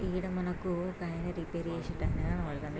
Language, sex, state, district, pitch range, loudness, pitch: Telugu, female, Andhra Pradesh, Krishna, 170-180 Hz, -36 LUFS, 175 Hz